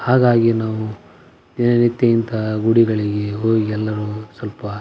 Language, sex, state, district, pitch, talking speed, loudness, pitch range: Kannada, male, Karnataka, Belgaum, 110 Hz, 110 wpm, -18 LUFS, 105-115 Hz